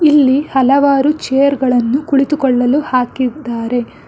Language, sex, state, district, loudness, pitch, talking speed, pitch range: Kannada, female, Karnataka, Bangalore, -13 LUFS, 270 Hz, 90 wpm, 250-280 Hz